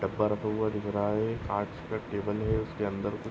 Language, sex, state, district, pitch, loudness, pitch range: Bhojpuri, male, Uttar Pradesh, Gorakhpur, 105 Hz, -31 LUFS, 100-110 Hz